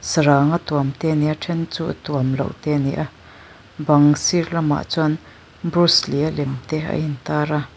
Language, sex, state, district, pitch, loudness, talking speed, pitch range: Mizo, female, Mizoram, Aizawl, 150 Hz, -20 LUFS, 170 wpm, 140-160 Hz